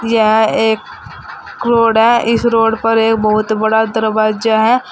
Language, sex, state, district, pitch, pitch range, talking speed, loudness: Hindi, female, Uttar Pradesh, Saharanpur, 225 Hz, 220-230 Hz, 135 wpm, -13 LUFS